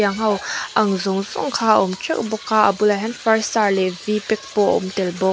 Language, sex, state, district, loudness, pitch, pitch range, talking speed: Mizo, female, Mizoram, Aizawl, -19 LUFS, 210 Hz, 195-220 Hz, 270 wpm